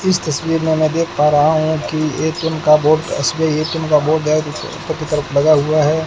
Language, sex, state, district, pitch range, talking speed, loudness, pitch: Hindi, male, Rajasthan, Bikaner, 150-160 Hz, 245 wpm, -16 LUFS, 155 Hz